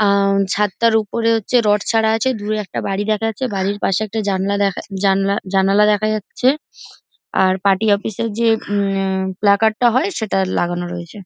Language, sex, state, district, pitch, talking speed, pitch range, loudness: Bengali, female, West Bengal, Dakshin Dinajpur, 210 Hz, 170 wpm, 195-225 Hz, -18 LUFS